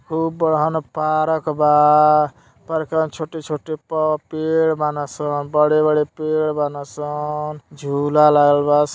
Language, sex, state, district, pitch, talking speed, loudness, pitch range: Hindi, male, Uttar Pradesh, Gorakhpur, 150 Hz, 135 wpm, -18 LUFS, 150-155 Hz